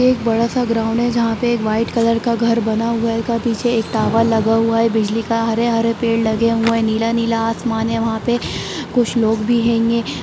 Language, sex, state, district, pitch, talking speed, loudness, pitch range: Hindi, female, Bihar, Saran, 230 Hz, 230 wpm, -17 LUFS, 225-235 Hz